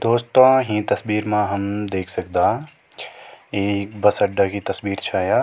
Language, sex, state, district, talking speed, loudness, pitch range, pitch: Garhwali, male, Uttarakhand, Tehri Garhwal, 155 wpm, -20 LUFS, 100-105 Hz, 105 Hz